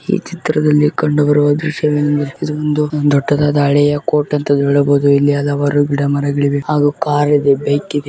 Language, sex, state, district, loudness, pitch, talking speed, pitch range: Kannada, male, Karnataka, Bijapur, -14 LUFS, 145 Hz, 140 wpm, 145-150 Hz